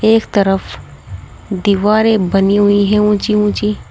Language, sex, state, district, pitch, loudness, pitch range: Hindi, female, Uttar Pradesh, Saharanpur, 205 Hz, -13 LUFS, 200-210 Hz